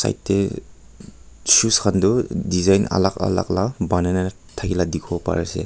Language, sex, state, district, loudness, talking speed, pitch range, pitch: Nagamese, male, Nagaland, Kohima, -20 LUFS, 170 wpm, 90-100 Hz, 95 Hz